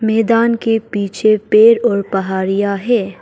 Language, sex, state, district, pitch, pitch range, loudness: Hindi, female, Arunachal Pradesh, Papum Pare, 215 Hz, 200-230 Hz, -14 LUFS